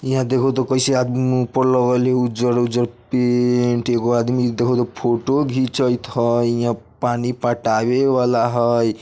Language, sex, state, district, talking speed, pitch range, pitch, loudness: Bajjika, male, Bihar, Vaishali, 155 wpm, 120-130 Hz, 125 Hz, -18 LUFS